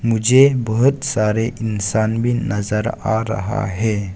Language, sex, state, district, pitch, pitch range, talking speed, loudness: Hindi, male, Arunachal Pradesh, Lower Dibang Valley, 110 Hz, 105-120 Hz, 130 wpm, -18 LUFS